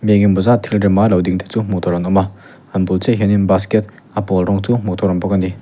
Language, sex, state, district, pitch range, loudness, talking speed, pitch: Mizo, male, Mizoram, Aizawl, 95-105 Hz, -16 LUFS, 320 wpm, 100 Hz